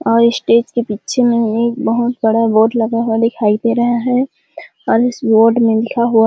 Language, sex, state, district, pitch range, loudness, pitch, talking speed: Hindi, female, Chhattisgarh, Sarguja, 225-240 Hz, -14 LUFS, 230 Hz, 220 wpm